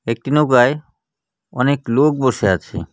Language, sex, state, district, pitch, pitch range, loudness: Bengali, male, West Bengal, Cooch Behar, 130 Hz, 115-145 Hz, -16 LUFS